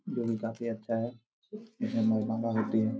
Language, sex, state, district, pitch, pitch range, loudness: Hindi, male, Jharkhand, Jamtara, 115 Hz, 110-120 Hz, -32 LUFS